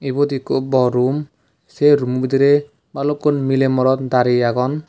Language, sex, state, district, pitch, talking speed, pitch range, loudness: Chakma, male, Tripura, West Tripura, 135 Hz, 135 wpm, 130-145 Hz, -17 LUFS